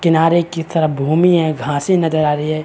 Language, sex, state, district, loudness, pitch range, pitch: Hindi, male, Chhattisgarh, Bilaspur, -15 LUFS, 155-165 Hz, 160 Hz